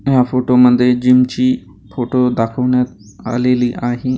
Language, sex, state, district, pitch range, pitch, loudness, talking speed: Marathi, male, Maharashtra, Gondia, 120-125 Hz, 125 Hz, -14 LUFS, 130 wpm